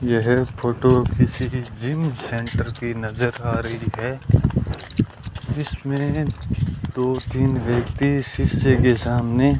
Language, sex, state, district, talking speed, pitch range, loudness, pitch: Hindi, male, Rajasthan, Bikaner, 105 wpm, 115-130 Hz, -22 LUFS, 125 Hz